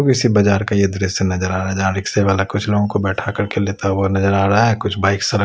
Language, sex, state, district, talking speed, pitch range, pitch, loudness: Hindi, male, Chhattisgarh, Raipur, 295 wpm, 95-105 Hz, 100 Hz, -17 LUFS